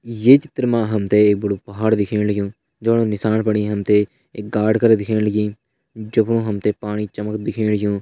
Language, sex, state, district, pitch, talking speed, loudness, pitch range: Garhwali, male, Uttarakhand, Uttarkashi, 105 Hz, 195 wpm, -19 LUFS, 105-115 Hz